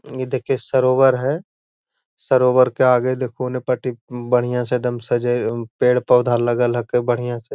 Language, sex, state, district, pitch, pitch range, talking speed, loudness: Magahi, male, Bihar, Gaya, 125 Hz, 120-130 Hz, 165 wpm, -19 LUFS